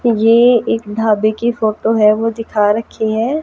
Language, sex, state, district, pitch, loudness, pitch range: Hindi, female, Haryana, Jhajjar, 225 Hz, -14 LUFS, 215-230 Hz